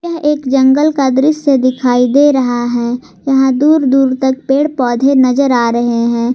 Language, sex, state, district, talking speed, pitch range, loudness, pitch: Hindi, female, Jharkhand, Garhwa, 180 wpm, 245-280 Hz, -12 LUFS, 265 Hz